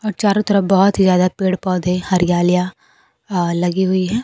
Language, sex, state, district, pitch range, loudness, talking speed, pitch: Hindi, female, Bihar, Kaimur, 180-200 Hz, -16 LUFS, 170 wpm, 185 Hz